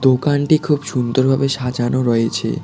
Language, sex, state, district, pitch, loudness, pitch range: Bengali, male, West Bengal, Cooch Behar, 130 Hz, -17 LUFS, 120-140 Hz